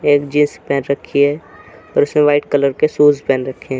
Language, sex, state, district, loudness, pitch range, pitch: Hindi, male, Uttar Pradesh, Jalaun, -15 LUFS, 140-145 Hz, 145 Hz